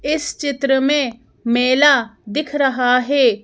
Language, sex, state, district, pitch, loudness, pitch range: Hindi, female, Madhya Pradesh, Bhopal, 270 Hz, -17 LUFS, 245-290 Hz